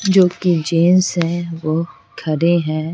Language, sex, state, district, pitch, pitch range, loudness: Hindi, female, Bihar, Patna, 170 Hz, 165-180 Hz, -17 LUFS